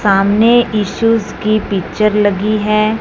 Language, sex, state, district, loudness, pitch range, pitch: Hindi, female, Punjab, Fazilka, -13 LUFS, 205-220 Hz, 215 Hz